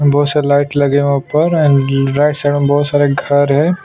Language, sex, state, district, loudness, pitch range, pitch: Hindi, male, Chhattisgarh, Kabirdham, -13 LUFS, 140-145 Hz, 145 Hz